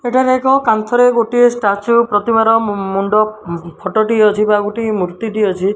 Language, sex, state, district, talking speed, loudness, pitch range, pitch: Odia, male, Odisha, Malkangiri, 175 wpm, -14 LUFS, 205-235 Hz, 215 Hz